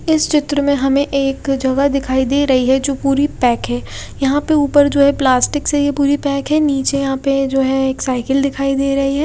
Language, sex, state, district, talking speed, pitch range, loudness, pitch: Hindi, female, Bihar, Katihar, 235 wpm, 270-285 Hz, -15 LUFS, 275 Hz